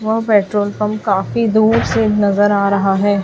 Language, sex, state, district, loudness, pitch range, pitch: Hindi, female, Chhattisgarh, Raipur, -15 LUFS, 200-220 Hz, 205 Hz